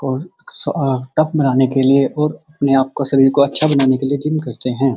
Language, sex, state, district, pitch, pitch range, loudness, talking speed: Hindi, male, Uttar Pradesh, Muzaffarnagar, 140 Hz, 130-150 Hz, -16 LUFS, 230 wpm